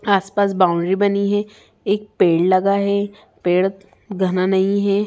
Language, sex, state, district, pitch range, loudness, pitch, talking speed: Hindi, female, Bihar, Sitamarhi, 190-205 Hz, -18 LUFS, 200 Hz, 140 wpm